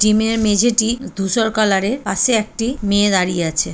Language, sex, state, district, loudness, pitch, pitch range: Bengali, female, West Bengal, North 24 Parganas, -17 LUFS, 215 Hz, 200-225 Hz